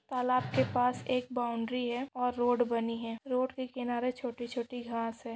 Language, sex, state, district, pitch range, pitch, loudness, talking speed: Hindi, female, Maharashtra, Pune, 230-250 Hz, 245 Hz, -33 LUFS, 200 wpm